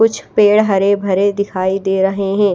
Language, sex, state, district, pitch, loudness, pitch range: Hindi, female, Odisha, Malkangiri, 200 Hz, -14 LUFS, 195-205 Hz